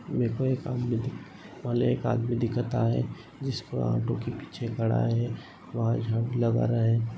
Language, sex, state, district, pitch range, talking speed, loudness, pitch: Marathi, male, Maharashtra, Sindhudurg, 115-120 Hz, 160 wpm, -29 LUFS, 115 Hz